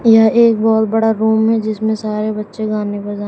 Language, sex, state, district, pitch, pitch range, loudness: Hindi, female, Uttar Pradesh, Shamli, 220 Hz, 215-225 Hz, -15 LUFS